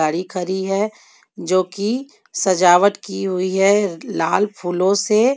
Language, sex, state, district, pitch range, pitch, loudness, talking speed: Hindi, female, Jharkhand, Ranchi, 185-205 Hz, 195 Hz, -18 LUFS, 125 wpm